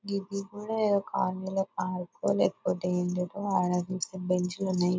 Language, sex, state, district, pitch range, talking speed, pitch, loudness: Telugu, female, Telangana, Nalgonda, 180-195 Hz, 130 wpm, 185 Hz, -30 LUFS